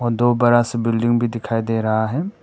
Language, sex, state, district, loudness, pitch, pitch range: Hindi, male, Arunachal Pradesh, Papum Pare, -19 LUFS, 120 Hz, 115-120 Hz